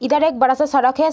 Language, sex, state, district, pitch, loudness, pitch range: Hindi, female, Bihar, Madhepura, 290 Hz, -16 LUFS, 265-305 Hz